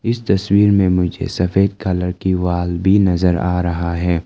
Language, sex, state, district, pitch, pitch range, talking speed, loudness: Hindi, male, Arunachal Pradesh, Lower Dibang Valley, 90 Hz, 90-100 Hz, 185 wpm, -16 LUFS